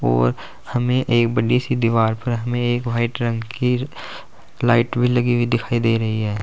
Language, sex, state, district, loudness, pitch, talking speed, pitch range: Hindi, male, Uttar Pradesh, Saharanpur, -20 LUFS, 120 Hz, 185 wpm, 115-120 Hz